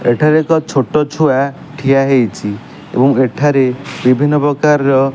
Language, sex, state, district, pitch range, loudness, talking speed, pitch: Odia, male, Odisha, Malkangiri, 130-150 Hz, -13 LUFS, 130 wpm, 135 Hz